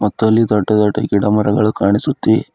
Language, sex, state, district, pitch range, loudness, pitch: Kannada, male, Karnataka, Bidar, 105-110 Hz, -15 LUFS, 105 Hz